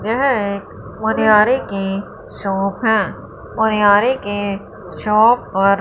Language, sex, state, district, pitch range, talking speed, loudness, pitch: Hindi, female, Punjab, Fazilka, 200-220 Hz, 105 wpm, -16 LUFS, 205 Hz